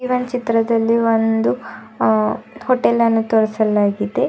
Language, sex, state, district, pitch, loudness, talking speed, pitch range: Kannada, female, Karnataka, Bidar, 225 Hz, -17 LUFS, 110 wpm, 220-235 Hz